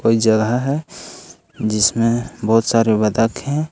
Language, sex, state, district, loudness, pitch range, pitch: Hindi, male, Jharkhand, Ranchi, -17 LUFS, 110-120 Hz, 115 Hz